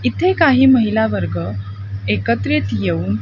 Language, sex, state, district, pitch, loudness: Marathi, female, Maharashtra, Gondia, 105 Hz, -16 LUFS